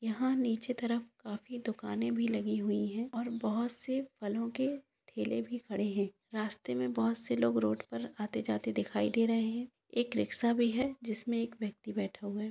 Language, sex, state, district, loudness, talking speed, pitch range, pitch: Hindi, female, Andhra Pradesh, Anantapur, -35 LUFS, 175 wpm, 200-235 Hz, 220 Hz